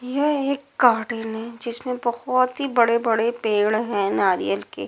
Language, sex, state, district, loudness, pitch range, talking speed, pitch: Hindi, female, Punjab, Pathankot, -22 LUFS, 225-255 Hz, 135 wpm, 235 Hz